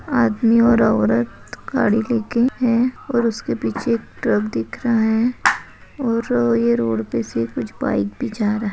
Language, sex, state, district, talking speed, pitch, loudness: Hindi, female, Maharashtra, Pune, 165 wpm, 225 Hz, -19 LUFS